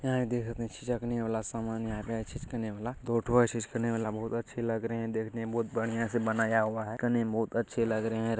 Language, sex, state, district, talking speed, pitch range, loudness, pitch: Hindi, male, Bihar, Purnia, 145 wpm, 110-120 Hz, -32 LUFS, 115 Hz